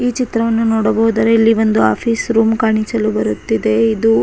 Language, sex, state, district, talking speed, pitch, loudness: Kannada, female, Karnataka, Raichur, 155 wpm, 220 Hz, -14 LUFS